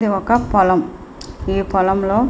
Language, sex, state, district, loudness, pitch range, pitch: Telugu, female, Andhra Pradesh, Srikakulam, -17 LUFS, 195-215 Hz, 195 Hz